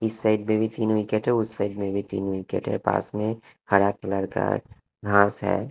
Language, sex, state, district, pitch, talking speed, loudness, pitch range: Hindi, male, Punjab, Kapurthala, 105 Hz, 220 wpm, -25 LUFS, 100-110 Hz